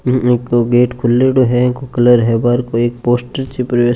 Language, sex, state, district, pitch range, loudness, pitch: Marwari, male, Rajasthan, Churu, 120-125 Hz, -14 LUFS, 120 Hz